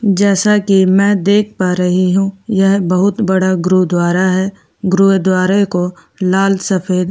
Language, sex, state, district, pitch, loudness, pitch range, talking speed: Hindi, female, Delhi, New Delhi, 190 Hz, -13 LUFS, 185-200 Hz, 145 wpm